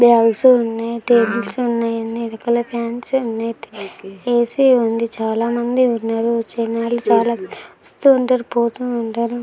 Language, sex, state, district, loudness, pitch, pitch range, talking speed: Telugu, female, Andhra Pradesh, Anantapur, -18 LUFS, 235 Hz, 230-240 Hz, 115 wpm